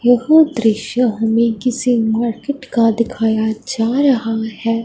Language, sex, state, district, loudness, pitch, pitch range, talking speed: Hindi, female, Punjab, Fazilka, -16 LUFS, 230 Hz, 225-250 Hz, 110 wpm